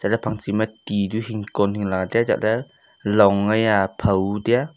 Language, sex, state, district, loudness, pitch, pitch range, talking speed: Wancho, male, Arunachal Pradesh, Longding, -21 LUFS, 105 Hz, 100-110 Hz, 200 wpm